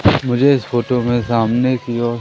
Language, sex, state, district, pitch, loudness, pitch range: Hindi, male, Madhya Pradesh, Umaria, 120 Hz, -16 LUFS, 120-125 Hz